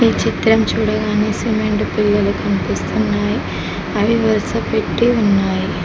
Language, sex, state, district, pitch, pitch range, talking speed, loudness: Telugu, female, Telangana, Mahabubabad, 215 Hz, 205-220 Hz, 100 wpm, -17 LUFS